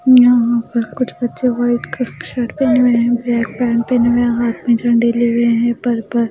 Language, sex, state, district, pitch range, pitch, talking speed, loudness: Hindi, female, Maharashtra, Mumbai Suburban, 235-245 Hz, 240 Hz, 230 wpm, -15 LUFS